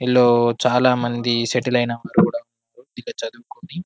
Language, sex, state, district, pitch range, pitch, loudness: Telugu, male, Telangana, Karimnagar, 120-125 Hz, 120 Hz, -19 LUFS